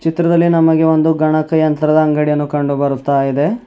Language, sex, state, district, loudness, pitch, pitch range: Kannada, male, Karnataka, Bidar, -14 LUFS, 155 Hz, 145-160 Hz